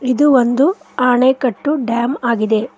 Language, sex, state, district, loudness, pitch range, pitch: Kannada, female, Karnataka, Koppal, -15 LUFS, 235-275 Hz, 255 Hz